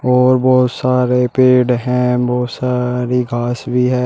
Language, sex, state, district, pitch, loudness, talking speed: Hindi, male, Uttar Pradesh, Shamli, 125 Hz, -14 LUFS, 145 wpm